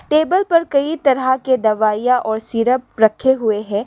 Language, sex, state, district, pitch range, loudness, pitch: Hindi, female, Arunachal Pradesh, Lower Dibang Valley, 220-280 Hz, -16 LUFS, 250 Hz